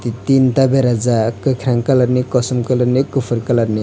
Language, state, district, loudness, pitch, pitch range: Kokborok, Tripura, West Tripura, -15 LUFS, 125 Hz, 120-130 Hz